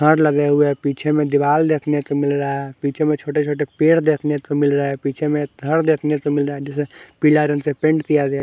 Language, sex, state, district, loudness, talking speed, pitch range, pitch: Hindi, male, Haryana, Charkhi Dadri, -18 LUFS, 255 wpm, 140-150 Hz, 145 Hz